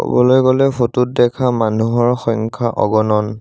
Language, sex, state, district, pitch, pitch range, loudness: Assamese, male, Assam, Sonitpur, 120 Hz, 110-125 Hz, -15 LUFS